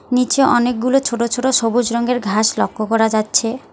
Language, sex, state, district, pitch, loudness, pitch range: Bengali, female, West Bengal, Alipurduar, 240 Hz, -16 LUFS, 225-250 Hz